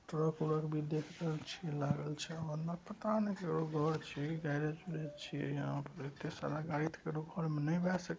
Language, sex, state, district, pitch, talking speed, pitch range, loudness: Maithili, male, Bihar, Saharsa, 155 Hz, 140 wpm, 150-160 Hz, -39 LUFS